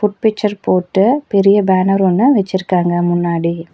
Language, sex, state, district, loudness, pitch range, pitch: Tamil, female, Tamil Nadu, Nilgiris, -14 LUFS, 175-205 Hz, 190 Hz